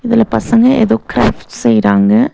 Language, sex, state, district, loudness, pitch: Tamil, female, Tamil Nadu, Nilgiris, -11 LUFS, 225 Hz